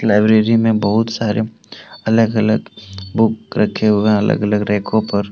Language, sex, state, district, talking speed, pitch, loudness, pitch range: Hindi, male, Jharkhand, Deoghar, 145 wpm, 110 Hz, -16 LUFS, 105-110 Hz